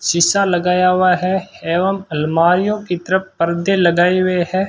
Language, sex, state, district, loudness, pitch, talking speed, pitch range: Hindi, male, Rajasthan, Bikaner, -16 LUFS, 180 Hz, 155 wpm, 170-190 Hz